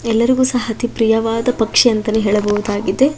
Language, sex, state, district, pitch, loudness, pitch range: Kannada, female, Karnataka, Shimoga, 225 Hz, -16 LUFS, 215-245 Hz